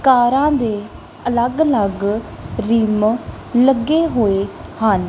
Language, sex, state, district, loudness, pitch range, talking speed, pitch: Punjabi, female, Punjab, Kapurthala, -17 LUFS, 210-265 Hz, 95 wpm, 230 Hz